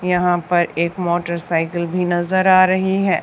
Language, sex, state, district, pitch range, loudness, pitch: Hindi, female, Haryana, Charkhi Dadri, 170-185 Hz, -17 LUFS, 175 Hz